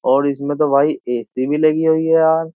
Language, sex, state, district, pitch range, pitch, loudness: Hindi, male, Uttar Pradesh, Jyotiba Phule Nagar, 140-160 Hz, 150 Hz, -16 LUFS